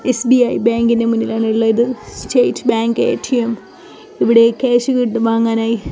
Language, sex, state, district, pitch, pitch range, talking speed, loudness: Malayalam, female, Kerala, Kozhikode, 230 Hz, 225-245 Hz, 100 wpm, -15 LUFS